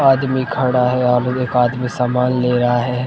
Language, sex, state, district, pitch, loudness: Hindi, male, Maharashtra, Mumbai Suburban, 125 Hz, -17 LUFS